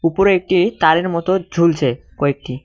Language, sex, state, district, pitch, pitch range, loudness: Bengali, male, West Bengal, Cooch Behar, 170 Hz, 140-185 Hz, -16 LUFS